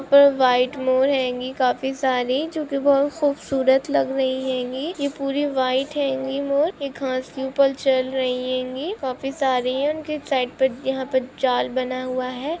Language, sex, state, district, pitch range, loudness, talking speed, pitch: Hindi, female, West Bengal, Kolkata, 255-280 Hz, -22 LUFS, 170 wpm, 265 Hz